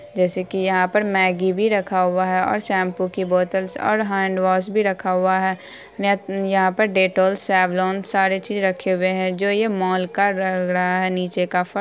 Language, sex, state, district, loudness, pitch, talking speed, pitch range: Hindi, female, Bihar, Araria, -20 LUFS, 190 Hz, 185 wpm, 185-195 Hz